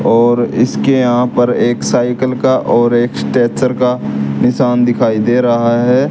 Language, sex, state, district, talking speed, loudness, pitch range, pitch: Hindi, male, Haryana, Charkhi Dadri, 155 wpm, -13 LUFS, 120-125 Hz, 120 Hz